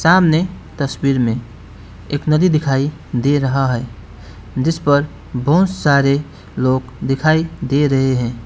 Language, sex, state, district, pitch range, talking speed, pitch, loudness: Hindi, male, West Bengal, Alipurduar, 120-150 Hz, 120 wpm, 135 Hz, -17 LUFS